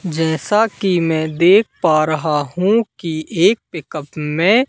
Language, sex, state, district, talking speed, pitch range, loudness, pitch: Hindi, male, Madhya Pradesh, Katni, 140 wpm, 155-200 Hz, -16 LUFS, 165 Hz